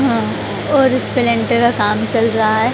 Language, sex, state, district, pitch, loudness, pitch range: Hindi, female, Haryana, Jhajjar, 235 Hz, -15 LUFS, 220-250 Hz